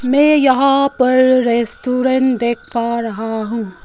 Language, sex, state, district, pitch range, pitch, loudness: Hindi, female, Arunachal Pradesh, Lower Dibang Valley, 235-260 Hz, 250 Hz, -15 LUFS